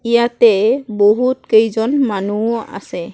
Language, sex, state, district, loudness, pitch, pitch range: Assamese, female, Assam, Kamrup Metropolitan, -15 LUFS, 230 Hz, 210-260 Hz